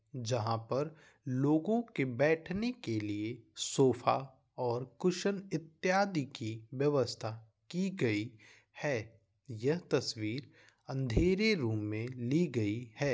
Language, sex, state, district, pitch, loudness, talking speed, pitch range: Hindi, male, Bihar, Vaishali, 130 Hz, -34 LUFS, 110 wpm, 115-160 Hz